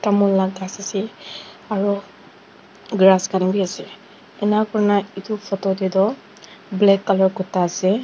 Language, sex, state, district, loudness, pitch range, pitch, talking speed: Nagamese, female, Nagaland, Dimapur, -19 LUFS, 190-205 Hz, 195 Hz, 140 wpm